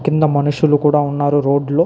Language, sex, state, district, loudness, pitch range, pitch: Telugu, male, Andhra Pradesh, Krishna, -15 LUFS, 145-155 Hz, 145 Hz